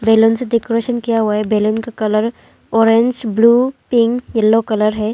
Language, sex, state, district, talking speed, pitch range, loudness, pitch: Hindi, female, Arunachal Pradesh, Longding, 175 wpm, 215-235 Hz, -15 LUFS, 225 Hz